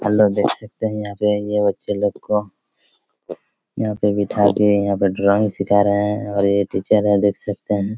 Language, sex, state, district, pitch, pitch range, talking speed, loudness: Hindi, male, Chhattisgarh, Raigarh, 105 Hz, 100-105 Hz, 210 wpm, -19 LUFS